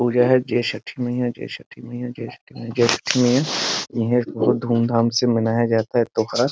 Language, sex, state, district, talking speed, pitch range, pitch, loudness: Hindi, male, Bihar, Muzaffarpur, 210 wpm, 115-125 Hz, 120 Hz, -20 LUFS